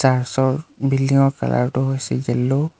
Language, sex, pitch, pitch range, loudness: Assamese, male, 135 Hz, 130-135 Hz, -19 LUFS